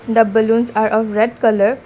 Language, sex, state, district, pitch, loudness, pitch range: English, female, Assam, Kamrup Metropolitan, 225 Hz, -15 LUFS, 215-230 Hz